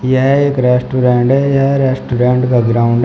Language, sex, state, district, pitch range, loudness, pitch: Hindi, male, Uttar Pradesh, Shamli, 125-135 Hz, -12 LUFS, 125 Hz